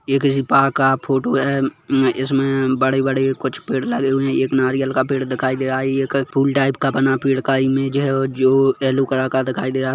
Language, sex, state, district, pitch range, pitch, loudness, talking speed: Hindi, male, Chhattisgarh, Kabirdham, 130-135 Hz, 135 Hz, -18 LUFS, 230 wpm